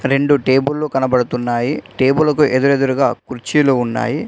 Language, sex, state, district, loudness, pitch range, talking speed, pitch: Telugu, male, Telangana, Adilabad, -16 LUFS, 125-140 Hz, 110 wpm, 135 Hz